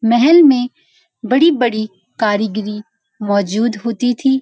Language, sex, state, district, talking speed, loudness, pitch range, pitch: Hindi, female, Uttarakhand, Uttarkashi, 95 wpm, -14 LUFS, 215-260 Hz, 230 Hz